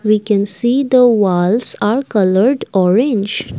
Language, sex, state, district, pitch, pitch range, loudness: English, female, Assam, Kamrup Metropolitan, 215 Hz, 200-245 Hz, -13 LUFS